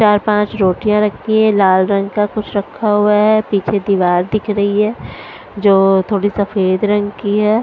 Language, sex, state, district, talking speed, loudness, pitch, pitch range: Hindi, female, Punjab, Pathankot, 180 wpm, -14 LUFS, 205 Hz, 200-210 Hz